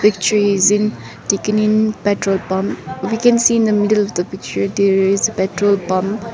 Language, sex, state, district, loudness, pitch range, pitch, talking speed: English, female, Sikkim, Gangtok, -16 LUFS, 190-215 Hz, 200 Hz, 190 wpm